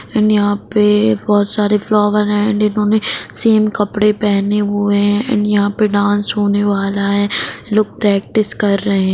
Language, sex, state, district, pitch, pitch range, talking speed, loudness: Hindi, female, Bihar, Gopalganj, 210 Hz, 205-210 Hz, 165 wpm, -14 LUFS